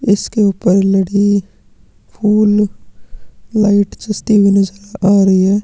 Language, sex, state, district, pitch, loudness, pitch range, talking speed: Hindi, male, Chhattisgarh, Sukma, 200 Hz, -13 LUFS, 190-210 Hz, 115 wpm